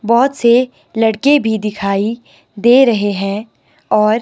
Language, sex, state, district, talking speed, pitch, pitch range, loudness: Hindi, female, Himachal Pradesh, Shimla, 130 wpm, 225 Hz, 210-245 Hz, -14 LUFS